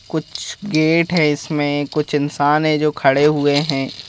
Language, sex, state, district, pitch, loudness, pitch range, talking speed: Hindi, male, Madhya Pradesh, Bhopal, 150 Hz, -17 LUFS, 145-155 Hz, 160 wpm